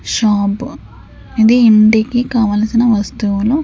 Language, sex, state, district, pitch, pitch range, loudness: Telugu, female, Andhra Pradesh, Sri Satya Sai, 220 Hz, 210-240 Hz, -13 LUFS